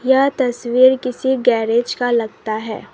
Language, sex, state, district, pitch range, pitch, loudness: Hindi, female, Assam, Sonitpur, 235-260 Hz, 245 Hz, -17 LUFS